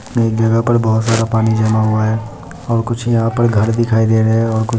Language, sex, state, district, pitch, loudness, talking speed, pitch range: Hindi, male, Bihar, Muzaffarpur, 115 Hz, -15 LUFS, 265 wpm, 110-115 Hz